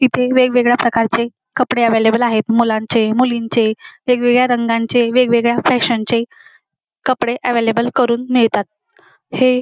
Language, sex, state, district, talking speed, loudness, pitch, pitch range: Marathi, female, Maharashtra, Dhule, 110 wpm, -15 LUFS, 240 Hz, 230-250 Hz